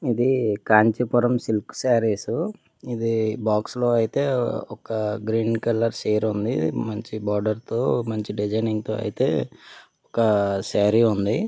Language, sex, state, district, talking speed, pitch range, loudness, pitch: Telugu, male, Telangana, Karimnagar, 125 wpm, 105-120 Hz, -23 LUFS, 110 Hz